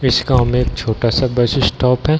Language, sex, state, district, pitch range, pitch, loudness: Hindi, male, Bihar, Darbhanga, 120-130 Hz, 125 Hz, -16 LUFS